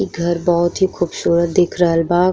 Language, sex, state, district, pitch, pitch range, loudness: Bhojpuri, female, Uttar Pradesh, Ghazipur, 175 Hz, 170-175 Hz, -16 LUFS